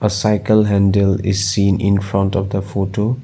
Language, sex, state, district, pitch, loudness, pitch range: English, male, Assam, Sonitpur, 100 Hz, -16 LUFS, 100-105 Hz